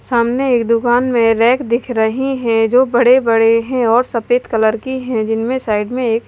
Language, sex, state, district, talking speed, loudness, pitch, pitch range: Hindi, female, Haryana, Charkhi Dadri, 200 wpm, -14 LUFS, 235 Hz, 225-250 Hz